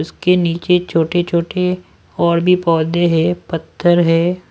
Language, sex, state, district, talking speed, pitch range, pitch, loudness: Hindi, male, Delhi, New Delhi, 120 wpm, 165-180 Hz, 175 Hz, -15 LUFS